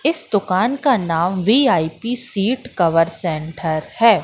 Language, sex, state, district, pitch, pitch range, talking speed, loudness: Hindi, female, Madhya Pradesh, Katni, 195 Hz, 165-245 Hz, 125 wpm, -18 LUFS